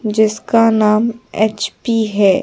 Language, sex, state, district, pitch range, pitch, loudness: Hindi, female, Bihar, Patna, 215-230 Hz, 220 Hz, -15 LUFS